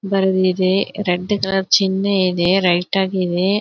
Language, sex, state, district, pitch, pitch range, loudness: Kannada, female, Karnataka, Belgaum, 190 Hz, 185-195 Hz, -17 LUFS